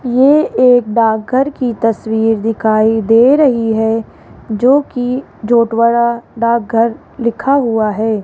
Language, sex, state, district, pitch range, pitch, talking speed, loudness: Hindi, female, Rajasthan, Jaipur, 225-250 Hz, 230 Hz, 110 wpm, -13 LUFS